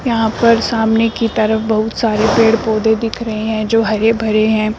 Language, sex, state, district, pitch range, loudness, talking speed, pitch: Hindi, female, Uttar Pradesh, Shamli, 220-225 Hz, -14 LUFS, 215 wpm, 225 Hz